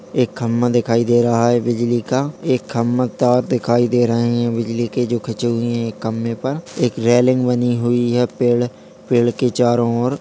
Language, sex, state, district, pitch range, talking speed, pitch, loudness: Hindi, male, Bihar, Jamui, 115-125 Hz, 200 wpm, 120 Hz, -18 LUFS